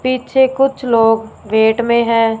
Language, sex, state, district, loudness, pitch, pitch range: Hindi, female, Punjab, Fazilka, -14 LUFS, 235 Hz, 225-255 Hz